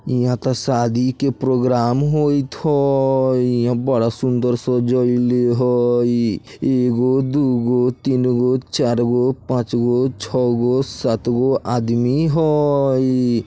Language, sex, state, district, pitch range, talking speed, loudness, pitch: Bajjika, male, Bihar, Vaishali, 120-130 Hz, 95 wpm, -18 LUFS, 125 Hz